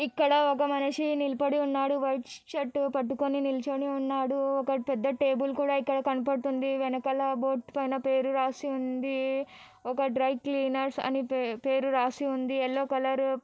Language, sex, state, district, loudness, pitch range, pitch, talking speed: Telugu, female, Andhra Pradesh, Anantapur, -29 LUFS, 265-280 Hz, 270 Hz, 145 wpm